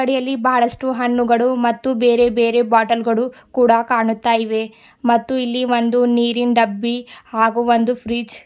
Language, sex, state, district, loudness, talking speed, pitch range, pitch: Kannada, female, Karnataka, Bidar, -17 LUFS, 140 wpm, 230-245 Hz, 240 Hz